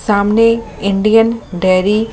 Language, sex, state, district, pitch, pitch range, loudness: Hindi, male, Delhi, New Delhi, 215 Hz, 200-225 Hz, -13 LUFS